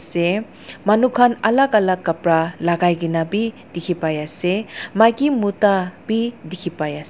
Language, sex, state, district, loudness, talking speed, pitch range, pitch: Nagamese, female, Nagaland, Dimapur, -19 LUFS, 150 wpm, 170-225 Hz, 185 Hz